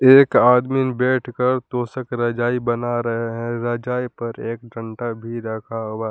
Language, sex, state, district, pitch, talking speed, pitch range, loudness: Hindi, male, Jharkhand, Palamu, 120 Hz, 145 wpm, 115-125 Hz, -21 LUFS